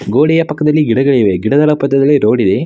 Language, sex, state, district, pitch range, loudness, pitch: Kannada, male, Karnataka, Mysore, 135-150 Hz, -11 LUFS, 145 Hz